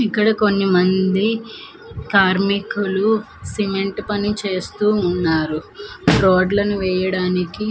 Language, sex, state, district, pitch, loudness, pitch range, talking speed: Telugu, female, Andhra Pradesh, Manyam, 195 Hz, -18 LUFS, 185-210 Hz, 80 wpm